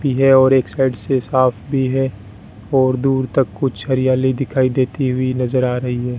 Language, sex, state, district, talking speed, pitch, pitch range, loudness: Hindi, male, Rajasthan, Bikaner, 205 wpm, 130 Hz, 125-135 Hz, -17 LUFS